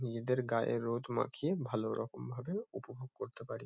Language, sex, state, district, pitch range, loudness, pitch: Bengali, male, West Bengal, Kolkata, 115-130 Hz, -38 LUFS, 125 Hz